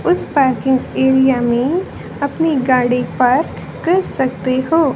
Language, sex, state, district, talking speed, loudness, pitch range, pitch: Hindi, female, Haryana, Rohtak, 120 wpm, -16 LUFS, 255-310 Hz, 265 Hz